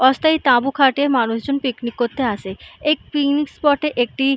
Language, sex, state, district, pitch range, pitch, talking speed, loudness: Bengali, female, West Bengal, Purulia, 245-285 Hz, 270 Hz, 165 wpm, -18 LUFS